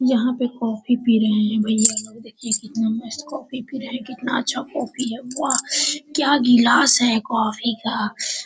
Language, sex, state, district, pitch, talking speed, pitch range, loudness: Hindi, female, Bihar, Araria, 245 Hz, 185 wpm, 225-260 Hz, -20 LUFS